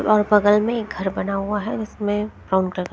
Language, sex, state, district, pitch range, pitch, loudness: Hindi, female, Punjab, Kapurthala, 195-215 Hz, 210 Hz, -21 LUFS